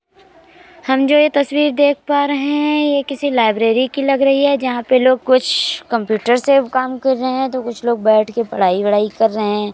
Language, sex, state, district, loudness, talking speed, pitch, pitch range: Hindi, male, Uttar Pradesh, Jyotiba Phule Nagar, -15 LUFS, 215 wpm, 265 Hz, 235-285 Hz